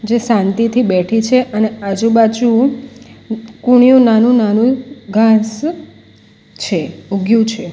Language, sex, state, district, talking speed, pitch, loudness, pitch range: Gujarati, female, Gujarat, Valsad, 95 wpm, 230 Hz, -13 LUFS, 220-245 Hz